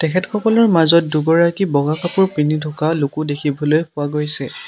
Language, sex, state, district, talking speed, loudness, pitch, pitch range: Assamese, male, Assam, Sonitpur, 155 wpm, -16 LUFS, 155 Hz, 150-170 Hz